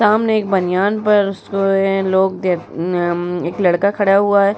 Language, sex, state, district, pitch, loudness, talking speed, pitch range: Hindi, female, Uttar Pradesh, Muzaffarnagar, 195 Hz, -16 LUFS, 185 wpm, 180-205 Hz